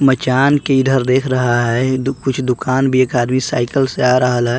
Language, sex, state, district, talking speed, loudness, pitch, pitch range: Hindi, male, Bihar, West Champaran, 210 wpm, -15 LUFS, 130 Hz, 125-135 Hz